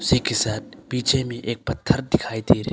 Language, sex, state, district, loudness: Hindi, male, Arunachal Pradesh, Longding, -23 LUFS